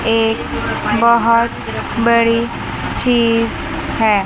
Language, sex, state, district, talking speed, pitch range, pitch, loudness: Hindi, female, Chandigarh, Chandigarh, 70 wpm, 215-235 Hz, 230 Hz, -16 LUFS